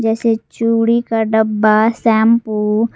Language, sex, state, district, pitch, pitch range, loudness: Hindi, female, Jharkhand, Garhwa, 225 Hz, 220-230 Hz, -14 LUFS